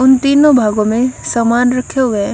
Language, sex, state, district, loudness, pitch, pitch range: Hindi, female, Punjab, Kapurthala, -12 LUFS, 250 Hz, 230-260 Hz